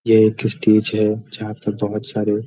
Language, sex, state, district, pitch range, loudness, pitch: Hindi, male, Bihar, Muzaffarpur, 105-110 Hz, -19 LUFS, 105 Hz